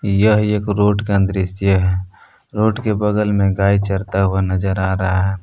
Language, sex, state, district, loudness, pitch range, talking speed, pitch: Hindi, male, Jharkhand, Palamu, -17 LUFS, 95-105 Hz, 190 wpm, 100 Hz